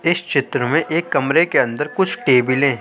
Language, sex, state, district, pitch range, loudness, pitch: Hindi, male, Uttar Pradesh, Jalaun, 130-165 Hz, -17 LUFS, 150 Hz